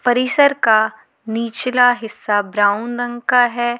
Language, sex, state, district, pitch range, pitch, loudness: Hindi, female, Jharkhand, Garhwa, 220-245 Hz, 240 Hz, -16 LUFS